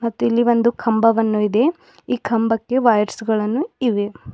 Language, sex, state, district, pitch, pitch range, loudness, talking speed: Kannada, female, Karnataka, Bidar, 230 Hz, 220-245 Hz, -18 LUFS, 125 wpm